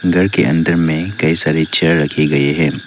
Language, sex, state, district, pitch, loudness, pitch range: Hindi, male, Arunachal Pradesh, Lower Dibang Valley, 80 Hz, -14 LUFS, 75-85 Hz